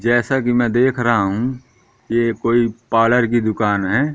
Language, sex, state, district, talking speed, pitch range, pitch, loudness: Hindi, male, Madhya Pradesh, Katni, 175 wpm, 115-120 Hz, 120 Hz, -17 LUFS